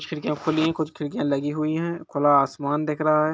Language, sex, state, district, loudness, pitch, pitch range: Hindi, male, Bihar, Gaya, -24 LUFS, 155 Hz, 145-155 Hz